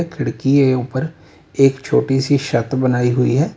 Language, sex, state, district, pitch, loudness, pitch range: Hindi, male, Uttar Pradesh, Lalitpur, 135 Hz, -17 LUFS, 125-140 Hz